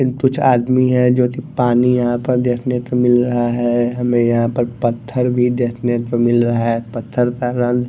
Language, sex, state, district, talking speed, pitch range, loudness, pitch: Hindi, male, Bihar, Katihar, 200 wpm, 120-125 Hz, -16 LUFS, 120 Hz